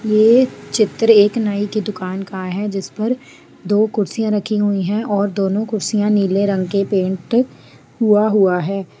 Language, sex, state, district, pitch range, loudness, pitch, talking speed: Hindi, female, Jharkhand, Sahebganj, 195-215 Hz, -17 LUFS, 205 Hz, 165 wpm